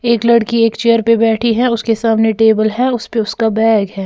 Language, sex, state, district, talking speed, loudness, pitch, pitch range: Hindi, female, Bihar, Patna, 235 wpm, -13 LUFS, 230 Hz, 220-235 Hz